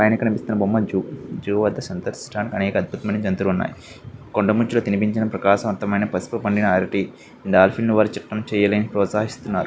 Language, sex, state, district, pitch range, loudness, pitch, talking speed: Telugu, male, Andhra Pradesh, Visakhapatnam, 100-110 Hz, -21 LUFS, 105 Hz, 130 wpm